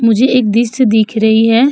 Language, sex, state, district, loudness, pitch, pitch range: Hindi, female, Uttar Pradesh, Hamirpur, -11 LUFS, 230 Hz, 220-250 Hz